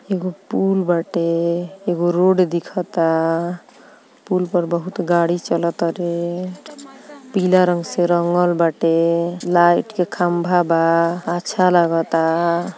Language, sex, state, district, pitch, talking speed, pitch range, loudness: Bhojpuri, female, Uttar Pradesh, Ghazipur, 175 Hz, 110 wpm, 170-185 Hz, -18 LUFS